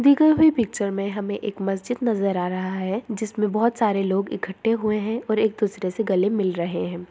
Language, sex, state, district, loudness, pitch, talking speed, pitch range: Hindi, female, Bihar, Begusarai, -23 LUFS, 210 Hz, 230 wpm, 195-225 Hz